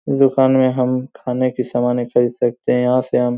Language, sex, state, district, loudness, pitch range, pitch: Hindi, male, Bihar, Supaul, -17 LUFS, 120-130 Hz, 125 Hz